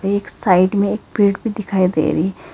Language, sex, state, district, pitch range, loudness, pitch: Hindi, female, Karnataka, Bangalore, 185-205 Hz, -17 LUFS, 195 Hz